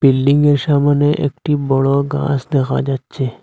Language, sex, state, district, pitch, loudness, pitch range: Bengali, male, Assam, Hailakandi, 140 Hz, -16 LUFS, 135-145 Hz